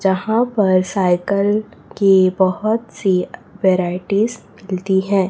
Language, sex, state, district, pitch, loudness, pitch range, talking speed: Hindi, female, Chhattisgarh, Raipur, 195 Hz, -17 LUFS, 185-210 Hz, 100 wpm